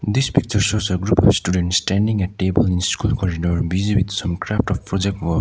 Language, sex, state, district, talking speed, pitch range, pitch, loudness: English, male, Sikkim, Gangtok, 220 wpm, 90-105 Hz, 100 Hz, -19 LUFS